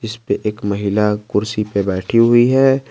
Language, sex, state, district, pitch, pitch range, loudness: Hindi, male, Jharkhand, Garhwa, 105 Hz, 100-115 Hz, -16 LUFS